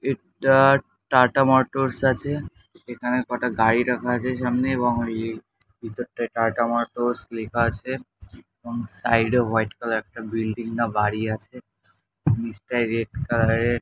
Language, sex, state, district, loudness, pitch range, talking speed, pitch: Bengali, male, West Bengal, North 24 Parganas, -23 LUFS, 110-125 Hz, 140 wpm, 120 Hz